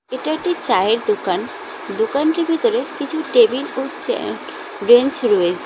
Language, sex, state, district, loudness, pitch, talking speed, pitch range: Bengali, female, West Bengal, Cooch Behar, -18 LUFS, 310 Hz, 125 wpm, 240-365 Hz